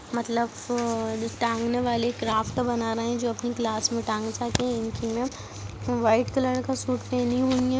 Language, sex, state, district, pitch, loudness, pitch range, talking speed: Hindi, female, Bihar, Muzaffarpur, 235 Hz, -27 LUFS, 225-245 Hz, 175 wpm